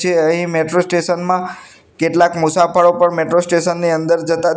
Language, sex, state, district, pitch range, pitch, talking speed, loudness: Gujarati, male, Gujarat, Gandhinagar, 165-175 Hz, 170 Hz, 170 wpm, -15 LUFS